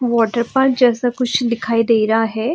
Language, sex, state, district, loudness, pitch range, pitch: Hindi, female, Goa, North and South Goa, -16 LUFS, 230-245 Hz, 235 Hz